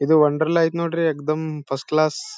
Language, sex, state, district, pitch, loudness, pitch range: Kannada, male, Karnataka, Bijapur, 155 Hz, -21 LUFS, 150-165 Hz